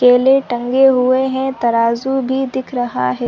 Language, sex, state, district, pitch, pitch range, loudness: Hindi, female, Chhattisgarh, Sarguja, 255 Hz, 240-265 Hz, -15 LUFS